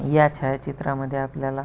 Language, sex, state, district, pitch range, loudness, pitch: Marathi, male, Maharashtra, Pune, 135-145 Hz, -24 LUFS, 135 Hz